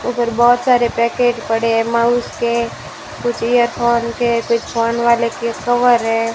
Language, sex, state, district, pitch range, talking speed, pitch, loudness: Hindi, female, Rajasthan, Bikaner, 230-240 Hz, 160 wpm, 235 Hz, -16 LUFS